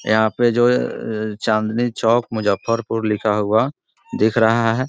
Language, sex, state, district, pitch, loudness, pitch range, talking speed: Hindi, male, Bihar, Muzaffarpur, 110 Hz, -19 LUFS, 110-120 Hz, 145 wpm